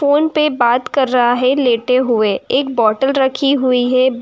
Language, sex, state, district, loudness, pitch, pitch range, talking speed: Hindi, female, Uttar Pradesh, Jyotiba Phule Nagar, -14 LUFS, 255 Hz, 240-270 Hz, 185 wpm